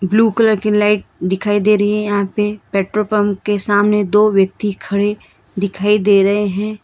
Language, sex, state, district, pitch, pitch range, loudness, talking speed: Hindi, female, Karnataka, Bangalore, 205 Hz, 200-210 Hz, -15 LUFS, 185 wpm